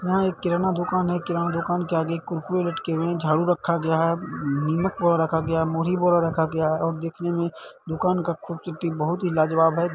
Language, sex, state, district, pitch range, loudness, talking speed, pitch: Maithili, male, Bihar, Madhepura, 160-175 Hz, -24 LUFS, 230 wpm, 170 Hz